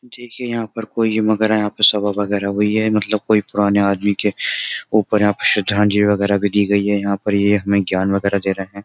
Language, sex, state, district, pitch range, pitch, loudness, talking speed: Hindi, male, Uttar Pradesh, Jyotiba Phule Nagar, 100-110 Hz, 105 Hz, -17 LUFS, 230 wpm